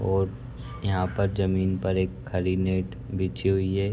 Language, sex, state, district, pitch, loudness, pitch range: Hindi, male, Uttar Pradesh, Budaun, 95 Hz, -27 LUFS, 95-100 Hz